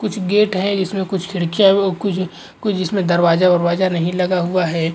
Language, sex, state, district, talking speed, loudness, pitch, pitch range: Hindi, male, Uttar Pradesh, Muzaffarnagar, 195 wpm, -17 LUFS, 185 Hz, 175-195 Hz